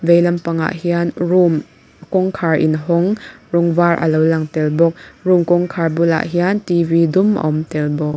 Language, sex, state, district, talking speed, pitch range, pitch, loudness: Mizo, female, Mizoram, Aizawl, 185 wpm, 160-175 Hz, 170 Hz, -16 LUFS